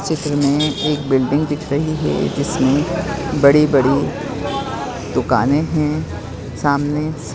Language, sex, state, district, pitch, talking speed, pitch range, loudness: Hindi, male, Chhattisgarh, Raigarh, 145 Hz, 105 wpm, 135-150 Hz, -18 LUFS